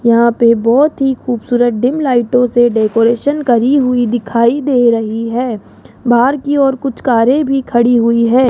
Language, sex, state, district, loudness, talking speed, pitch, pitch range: Hindi, female, Rajasthan, Jaipur, -12 LUFS, 170 wpm, 245 Hz, 235-265 Hz